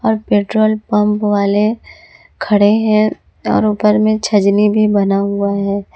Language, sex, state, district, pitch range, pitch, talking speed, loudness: Hindi, female, Jharkhand, Garhwa, 200-215 Hz, 210 Hz, 130 wpm, -14 LUFS